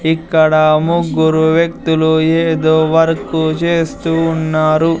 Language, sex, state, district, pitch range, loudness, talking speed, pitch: Telugu, male, Andhra Pradesh, Sri Satya Sai, 160-165 Hz, -13 LUFS, 85 wpm, 160 Hz